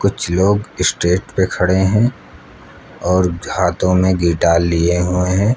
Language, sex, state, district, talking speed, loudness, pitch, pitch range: Hindi, male, Uttar Pradesh, Lucknow, 140 wpm, -16 LUFS, 90 Hz, 90-100 Hz